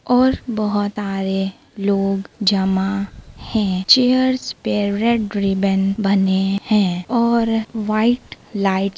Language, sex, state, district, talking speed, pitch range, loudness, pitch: Hindi, female, Bihar, Begusarai, 115 wpm, 195-225 Hz, -18 LUFS, 200 Hz